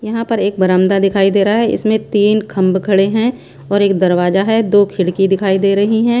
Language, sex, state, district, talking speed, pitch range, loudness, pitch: Hindi, female, Punjab, Pathankot, 220 wpm, 195-215 Hz, -13 LUFS, 200 Hz